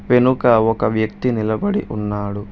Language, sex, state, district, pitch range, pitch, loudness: Telugu, male, Telangana, Hyderabad, 105-125 Hz, 110 Hz, -18 LUFS